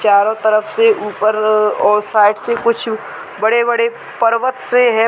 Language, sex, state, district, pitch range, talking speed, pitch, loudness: Hindi, female, Chhattisgarh, Bilaspur, 215-235 Hz, 165 wpm, 220 Hz, -14 LUFS